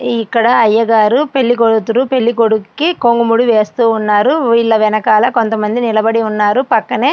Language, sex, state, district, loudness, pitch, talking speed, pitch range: Telugu, female, Andhra Pradesh, Srikakulam, -12 LUFS, 230 Hz, 120 wpm, 220-245 Hz